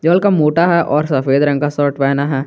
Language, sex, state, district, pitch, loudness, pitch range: Hindi, male, Jharkhand, Garhwa, 145 Hz, -14 LUFS, 140-165 Hz